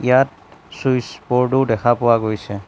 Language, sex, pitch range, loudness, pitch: Assamese, male, 105-130 Hz, -18 LUFS, 120 Hz